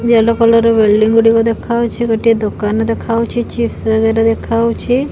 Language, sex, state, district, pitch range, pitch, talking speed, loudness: Odia, female, Odisha, Khordha, 225-230 Hz, 230 Hz, 140 wpm, -13 LUFS